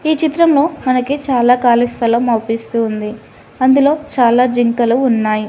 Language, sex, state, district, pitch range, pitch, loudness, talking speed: Telugu, female, Telangana, Mahabubabad, 235-280 Hz, 245 Hz, -14 LUFS, 130 wpm